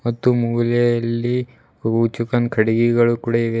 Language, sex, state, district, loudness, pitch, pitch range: Kannada, male, Karnataka, Bidar, -19 LUFS, 120 Hz, 115-120 Hz